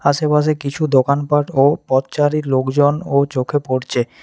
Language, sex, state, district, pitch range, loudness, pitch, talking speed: Bengali, male, West Bengal, Alipurduar, 130-150 Hz, -17 LUFS, 140 Hz, 115 wpm